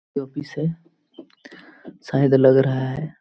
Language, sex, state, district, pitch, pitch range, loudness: Hindi, male, Jharkhand, Jamtara, 140 Hz, 135-155 Hz, -20 LUFS